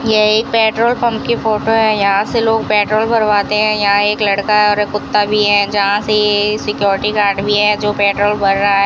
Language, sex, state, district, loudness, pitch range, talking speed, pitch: Hindi, female, Rajasthan, Bikaner, -13 LUFS, 205-215 Hz, 230 wpm, 210 Hz